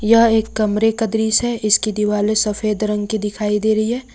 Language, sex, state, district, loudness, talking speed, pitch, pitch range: Hindi, female, Jharkhand, Ranchi, -17 LUFS, 215 wpm, 215 Hz, 210-225 Hz